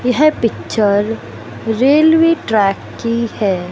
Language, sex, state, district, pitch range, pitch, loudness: Hindi, male, Madhya Pradesh, Katni, 205-280 Hz, 230 Hz, -14 LUFS